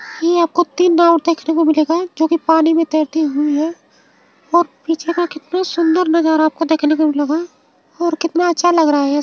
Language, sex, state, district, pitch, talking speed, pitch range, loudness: Bhojpuri, female, Uttar Pradesh, Ghazipur, 325 Hz, 195 wpm, 310-340 Hz, -15 LUFS